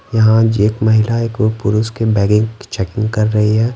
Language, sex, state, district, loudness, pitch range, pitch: Hindi, male, Bihar, West Champaran, -14 LUFS, 105-110 Hz, 110 Hz